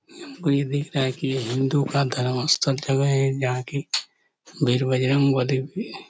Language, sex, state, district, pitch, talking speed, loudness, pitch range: Hindi, male, Chhattisgarh, Korba, 135 Hz, 175 wpm, -23 LUFS, 130-145 Hz